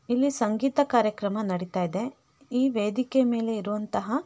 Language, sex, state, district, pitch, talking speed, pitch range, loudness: Kannada, female, Karnataka, Shimoga, 230 Hz, 140 wpm, 210-265 Hz, -26 LUFS